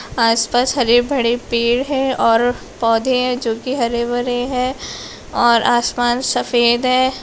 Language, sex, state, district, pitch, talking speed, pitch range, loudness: Hindi, female, Bihar, Lakhisarai, 245 Hz, 125 wpm, 235-255 Hz, -16 LUFS